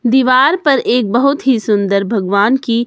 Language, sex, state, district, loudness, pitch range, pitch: Hindi, female, Himachal Pradesh, Shimla, -13 LUFS, 215-265 Hz, 240 Hz